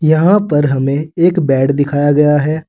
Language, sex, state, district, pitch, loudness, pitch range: Hindi, male, Uttar Pradesh, Saharanpur, 150 Hz, -12 LUFS, 145-160 Hz